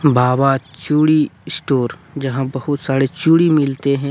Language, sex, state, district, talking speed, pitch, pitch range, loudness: Hindi, male, Jharkhand, Deoghar, 130 wpm, 140 Hz, 135-150 Hz, -17 LUFS